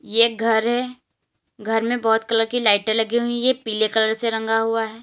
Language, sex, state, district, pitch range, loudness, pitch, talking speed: Hindi, female, Uttar Pradesh, Lalitpur, 220-235 Hz, -20 LUFS, 225 Hz, 215 wpm